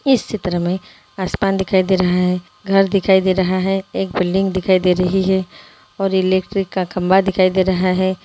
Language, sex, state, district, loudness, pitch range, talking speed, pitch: Hindi, female, Bihar, Gopalganj, -17 LUFS, 185-195 Hz, 195 wpm, 190 Hz